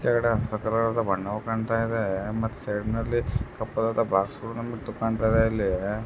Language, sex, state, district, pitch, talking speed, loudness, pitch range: Kannada, male, Karnataka, Dharwad, 115 Hz, 100 wpm, -27 LUFS, 105-115 Hz